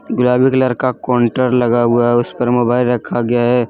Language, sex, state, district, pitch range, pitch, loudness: Hindi, male, Jharkhand, Deoghar, 120-125 Hz, 120 Hz, -14 LUFS